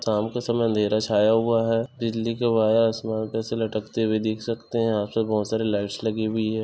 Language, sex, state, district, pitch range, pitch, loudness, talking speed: Hindi, male, Chhattisgarh, Bastar, 110-115 Hz, 110 Hz, -24 LUFS, 235 wpm